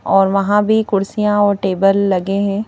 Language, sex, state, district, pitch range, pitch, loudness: Hindi, female, Madhya Pradesh, Bhopal, 195-205 Hz, 200 Hz, -15 LUFS